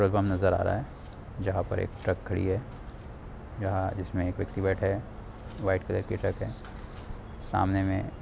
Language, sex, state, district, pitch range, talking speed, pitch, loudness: Hindi, male, Jharkhand, Jamtara, 95-105 Hz, 175 wpm, 100 Hz, -30 LUFS